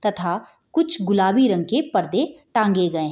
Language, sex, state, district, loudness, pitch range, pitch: Hindi, female, Bihar, Madhepura, -21 LUFS, 180-275 Hz, 200 Hz